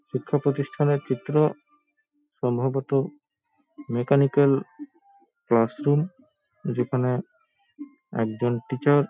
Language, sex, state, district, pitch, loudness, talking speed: Bengali, male, West Bengal, Paschim Medinipur, 145 Hz, -25 LUFS, 75 wpm